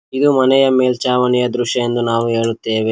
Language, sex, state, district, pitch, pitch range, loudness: Kannada, male, Karnataka, Koppal, 125 Hz, 115-130 Hz, -15 LUFS